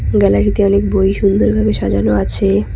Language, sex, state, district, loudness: Bengali, female, West Bengal, Cooch Behar, -13 LUFS